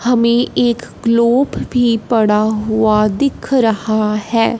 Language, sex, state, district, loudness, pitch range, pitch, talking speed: Hindi, female, Punjab, Fazilka, -15 LUFS, 215-240 Hz, 230 Hz, 115 wpm